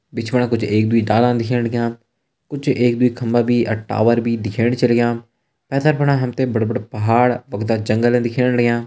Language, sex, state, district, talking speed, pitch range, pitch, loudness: Hindi, male, Uttarakhand, Uttarkashi, 210 wpm, 115-125 Hz, 120 Hz, -18 LUFS